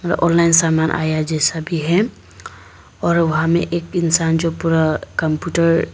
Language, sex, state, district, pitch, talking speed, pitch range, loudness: Hindi, female, Arunachal Pradesh, Papum Pare, 165 Hz, 170 wpm, 160-170 Hz, -17 LUFS